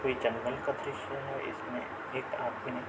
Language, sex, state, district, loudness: Hindi, male, Uttar Pradesh, Budaun, -36 LUFS